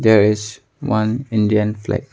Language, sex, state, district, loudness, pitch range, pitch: English, male, Arunachal Pradesh, Longding, -18 LUFS, 105-115 Hz, 110 Hz